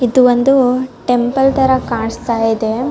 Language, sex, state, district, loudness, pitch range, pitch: Kannada, female, Karnataka, Bellary, -14 LUFS, 235-260 Hz, 250 Hz